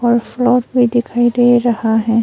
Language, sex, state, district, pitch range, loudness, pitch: Hindi, female, Arunachal Pradesh, Longding, 230-245 Hz, -14 LUFS, 240 Hz